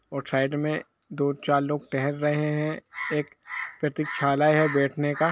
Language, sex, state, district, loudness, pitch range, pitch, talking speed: Hindi, male, Jharkhand, Jamtara, -26 LUFS, 140-150 Hz, 145 Hz, 155 wpm